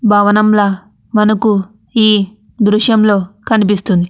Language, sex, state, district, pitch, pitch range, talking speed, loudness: Telugu, female, Andhra Pradesh, Anantapur, 210 Hz, 205-215 Hz, 75 wpm, -12 LUFS